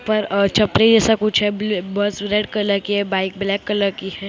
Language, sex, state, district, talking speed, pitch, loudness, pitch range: Hindi, female, Maharashtra, Mumbai Suburban, 265 wpm, 205 Hz, -18 LUFS, 200-210 Hz